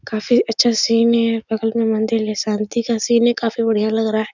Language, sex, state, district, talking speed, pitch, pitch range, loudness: Hindi, female, Uttar Pradesh, Etah, 220 wpm, 225 Hz, 220-230 Hz, -17 LUFS